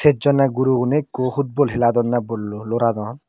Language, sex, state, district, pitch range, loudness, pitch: Chakma, male, Tripura, Dhalai, 115-140 Hz, -19 LUFS, 125 Hz